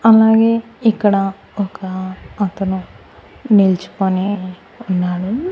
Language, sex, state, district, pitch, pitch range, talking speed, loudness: Telugu, female, Andhra Pradesh, Annamaya, 195 Hz, 185-220 Hz, 65 wpm, -17 LUFS